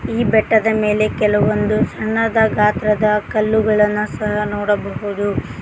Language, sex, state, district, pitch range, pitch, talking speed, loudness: Kannada, female, Karnataka, Koppal, 210-220 Hz, 210 Hz, 95 wpm, -17 LUFS